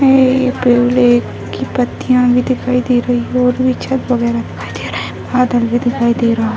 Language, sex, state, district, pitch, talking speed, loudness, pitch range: Hindi, female, Bihar, Jamui, 250 Hz, 220 wpm, -14 LUFS, 240-255 Hz